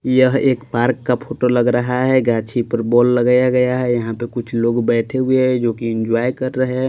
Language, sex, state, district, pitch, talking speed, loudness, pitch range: Hindi, male, Maharashtra, Washim, 125 Hz, 235 wpm, -17 LUFS, 120-130 Hz